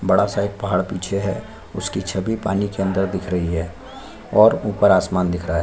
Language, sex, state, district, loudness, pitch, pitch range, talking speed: Hindi, male, Chhattisgarh, Sukma, -20 LUFS, 95 Hz, 90-100 Hz, 215 wpm